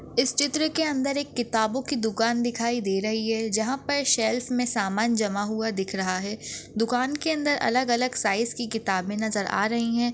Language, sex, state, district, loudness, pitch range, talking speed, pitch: Hindi, female, Maharashtra, Chandrapur, -25 LUFS, 220-255 Hz, 200 wpm, 235 Hz